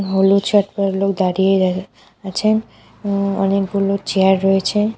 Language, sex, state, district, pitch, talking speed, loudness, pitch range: Bengali, female, West Bengal, Cooch Behar, 195 Hz, 130 wpm, -17 LUFS, 190-200 Hz